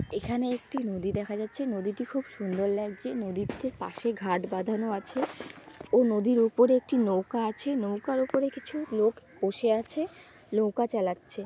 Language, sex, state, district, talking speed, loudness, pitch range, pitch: Bengali, female, West Bengal, North 24 Parganas, 150 wpm, -29 LUFS, 205-255 Hz, 225 Hz